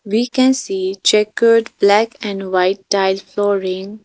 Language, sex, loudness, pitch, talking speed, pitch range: English, female, -16 LUFS, 205 Hz, 135 wpm, 195-225 Hz